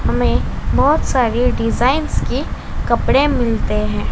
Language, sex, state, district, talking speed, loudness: Hindi, male, Maharashtra, Mumbai Suburban, 115 wpm, -17 LUFS